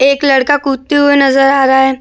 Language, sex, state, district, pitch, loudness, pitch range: Hindi, female, Uttar Pradesh, Jyotiba Phule Nagar, 275 Hz, -10 LUFS, 265-285 Hz